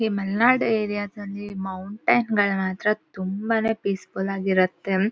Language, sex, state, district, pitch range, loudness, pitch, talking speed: Kannada, female, Karnataka, Shimoga, 190-215 Hz, -24 LUFS, 200 Hz, 70 wpm